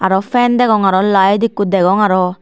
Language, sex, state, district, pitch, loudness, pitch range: Chakma, female, Tripura, Dhalai, 195 Hz, -12 LUFS, 190-215 Hz